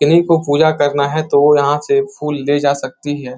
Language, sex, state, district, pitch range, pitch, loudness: Hindi, male, Uttar Pradesh, Etah, 145-155 Hz, 145 Hz, -14 LUFS